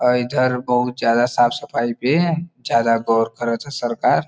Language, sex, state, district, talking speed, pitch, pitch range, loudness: Bhojpuri, male, Uttar Pradesh, Varanasi, 155 wpm, 125 Hz, 115-130 Hz, -19 LUFS